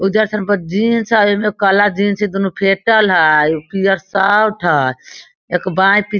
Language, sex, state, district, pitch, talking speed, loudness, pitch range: Hindi, female, Bihar, Sitamarhi, 200 Hz, 195 wpm, -14 LUFS, 195-210 Hz